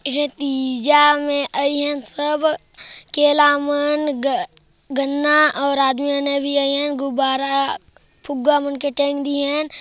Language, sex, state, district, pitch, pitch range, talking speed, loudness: Hindi, male, Chhattisgarh, Jashpur, 285 Hz, 280-295 Hz, 145 wpm, -17 LUFS